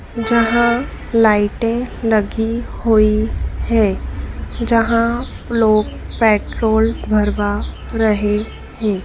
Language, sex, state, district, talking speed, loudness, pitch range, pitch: Hindi, female, Madhya Pradesh, Dhar, 75 wpm, -17 LUFS, 215-230 Hz, 225 Hz